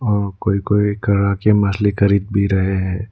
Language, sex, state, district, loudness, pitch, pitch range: Hindi, male, Arunachal Pradesh, Lower Dibang Valley, -17 LUFS, 100 Hz, 100-105 Hz